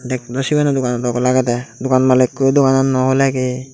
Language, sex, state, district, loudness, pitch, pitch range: Chakma, male, Tripura, Dhalai, -16 LUFS, 130 Hz, 125-135 Hz